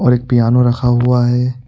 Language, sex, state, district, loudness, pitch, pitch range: Hindi, male, Uttar Pradesh, Budaun, -13 LUFS, 125 Hz, 120-125 Hz